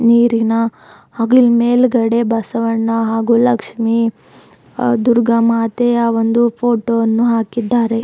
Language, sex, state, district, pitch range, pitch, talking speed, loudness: Kannada, female, Karnataka, Bidar, 230-235 Hz, 230 Hz, 90 wpm, -14 LUFS